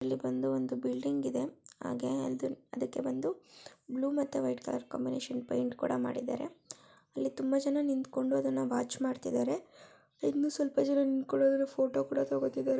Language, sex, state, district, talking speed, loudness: Kannada, female, Karnataka, Shimoga, 140 wpm, -33 LUFS